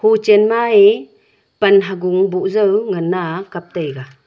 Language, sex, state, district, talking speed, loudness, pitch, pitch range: Wancho, female, Arunachal Pradesh, Longding, 155 wpm, -15 LUFS, 195 Hz, 180-215 Hz